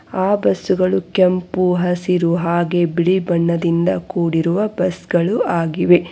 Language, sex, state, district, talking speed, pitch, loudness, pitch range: Kannada, female, Karnataka, Bangalore, 120 wpm, 180 Hz, -17 LUFS, 170-185 Hz